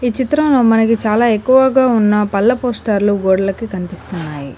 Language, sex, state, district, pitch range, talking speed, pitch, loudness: Telugu, female, Telangana, Komaram Bheem, 195-245 Hz, 115 wpm, 220 Hz, -14 LUFS